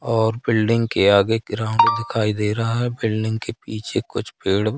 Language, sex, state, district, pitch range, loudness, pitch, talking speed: Hindi, male, Madhya Pradesh, Katni, 110-115 Hz, -20 LUFS, 110 Hz, 175 wpm